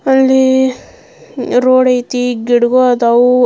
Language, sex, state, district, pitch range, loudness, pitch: Kannada, female, Karnataka, Belgaum, 245-260 Hz, -11 LUFS, 250 Hz